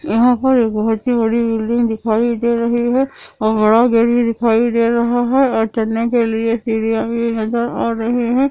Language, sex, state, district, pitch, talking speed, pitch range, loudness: Hindi, female, Andhra Pradesh, Anantapur, 235 Hz, 190 wpm, 225-240 Hz, -16 LUFS